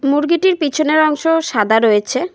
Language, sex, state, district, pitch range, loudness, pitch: Bengali, female, West Bengal, Cooch Behar, 245-325 Hz, -14 LUFS, 305 Hz